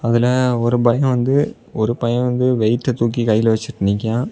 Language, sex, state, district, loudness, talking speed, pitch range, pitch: Tamil, male, Tamil Nadu, Kanyakumari, -17 LUFS, 165 wpm, 115-125 Hz, 120 Hz